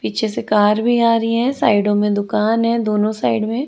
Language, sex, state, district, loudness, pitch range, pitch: Hindi, female, Chhattisgarh, Raipur, -17 LUFS, 210-230 Hz, 220 Hz